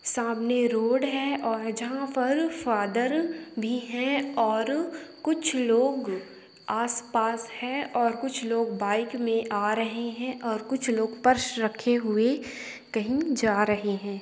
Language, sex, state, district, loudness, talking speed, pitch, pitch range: Hindi, female, Bihar, Gopalganj, -27 LUFS, 140 wpm, 240 Hz, 225-265 Hz